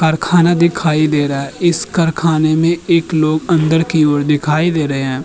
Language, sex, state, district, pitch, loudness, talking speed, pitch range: Hindi, male, Uttar Pradesh, Jyotiba Phule Nagar, 160 Hz, -14 LUFS, 195 wpm, 150-170 Hz